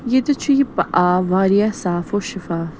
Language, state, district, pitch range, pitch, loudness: Kashmiri, Punjab, Kapurthala, 180-240 Hz, 195 Hz, -18 LUFS